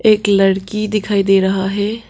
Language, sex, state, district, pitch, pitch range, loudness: Hindi, female, Arunachal Pradesh, Papum Pare, 200 Hz, 195-210 Hz, -15 LUFS